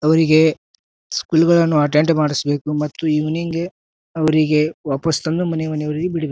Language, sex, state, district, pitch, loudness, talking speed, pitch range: Kannada, male, Karnataka, Bijapur, 155 Hz, -18 LUFS, 135 wpm, 150-165 Hz